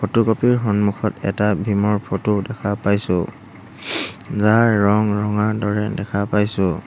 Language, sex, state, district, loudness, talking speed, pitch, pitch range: Assamese, male, Assam, Hailakandi, -19 LUFS, 130 wpm, 105 Hz, 100-105 Hz